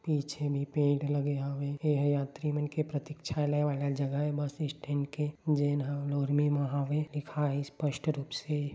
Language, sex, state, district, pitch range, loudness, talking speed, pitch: Chhattisgarhi, male, Chhattisgarh, Bilaspur, 140-150 Hz, -32 LUFS, 180 wpm, 145 Hz